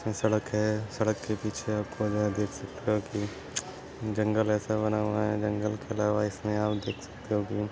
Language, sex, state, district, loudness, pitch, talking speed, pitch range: Hindi, male, Maharashtra, Sindhudurg, -30 LUFS, 105 Hz, 200 wpm, 105-110 Hz